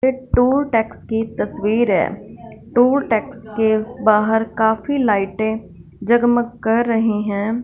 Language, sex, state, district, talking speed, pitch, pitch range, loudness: Hindi, female, Punjab, Fazilka, 125 wpm, 225 Hz, 220-240 Hz, -18 LUFS